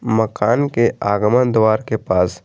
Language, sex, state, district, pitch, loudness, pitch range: Hindi, male, Jharkhand, Garhwa, 110 Hz, -17 LUFS, 105-120 Hz